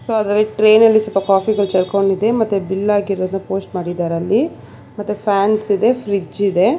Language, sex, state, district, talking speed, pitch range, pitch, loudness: Kannada, female, Karnataka, Bangalore, 170 wpm, 195-215 Hz, 200 Hz, -16 LUFS